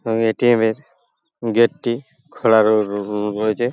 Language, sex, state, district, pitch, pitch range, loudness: Bengali, male, West Bengal, Paschim Medinipur, 115 Hz, 110-120 Hz, -18 LUFS